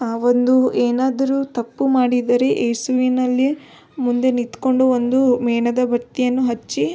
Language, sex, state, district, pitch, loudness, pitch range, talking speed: Kannada, female, Karnataka, Belgaum, 250 Hz, -18 LUFS, 240-255 Hz, 110 wpm